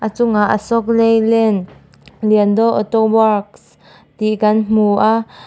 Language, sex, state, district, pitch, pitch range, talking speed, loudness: Mizo, female, Mizoram, Aizawl, 215 Hz, 210-225 Hz, 110 wpm, -14 LUFS